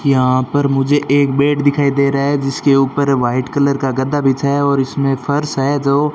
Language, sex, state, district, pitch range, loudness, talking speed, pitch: Hindi, male, Rajasthan, Bikaner, 135-145 Hz, -15 LUFS, 215 wpm, 140 Hz